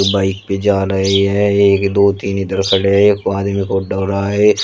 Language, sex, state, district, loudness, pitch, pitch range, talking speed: Hindi, male, Uttar Pradesh, Shamli, -14 LUFS, 100 Hz, 95-100 Hz, 180 wpm